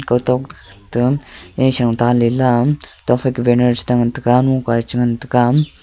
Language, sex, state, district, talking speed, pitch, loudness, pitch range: Wancho, male, Arunachal Pradesh, Longding, 145 wpm, 120 Hz, -16 LUFS, 120-130 Hz